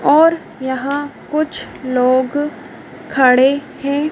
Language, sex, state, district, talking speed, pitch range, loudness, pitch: Hindi, female, Madhya Pradesh, Dhar, 85 wpm, 260-295 Hz, -16 LUFS, 280 Hz